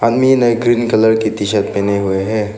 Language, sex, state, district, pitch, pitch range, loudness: Hindi, male, Arunachal Pradesh, Papum Pare, 110 Hz, 100-120 Hz, -14 LUFS